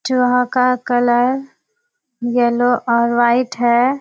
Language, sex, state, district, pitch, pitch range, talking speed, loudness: Hindi, female, Bihar, Kishanganj, 245 Hz, 240-255 Hz, 105 wpm, -16 LUFS